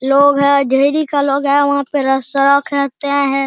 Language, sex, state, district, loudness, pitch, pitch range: Hindi, male, Bihar, Araria, -14 LUFS, 280 Hz, 275-285 Hz